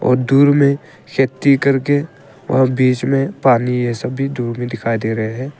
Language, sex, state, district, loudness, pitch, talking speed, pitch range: Hindi, male, Arunachal Pradesh, Papum Pare, -16 LUFS, 130 Hz, 180 wpm, 120-140 Hz